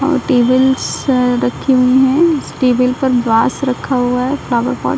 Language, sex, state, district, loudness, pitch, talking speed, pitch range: Hindi, female, Bihar, Saran, -14 LUFS, 255 Hz, 180 wpm, 245-265 Hz